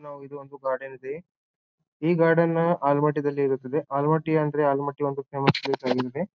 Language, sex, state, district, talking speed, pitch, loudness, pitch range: Kannada, male, Karnataka, Bijapur, 160 wpm, 145 Hz, -24 LUFS, 140-155 Hz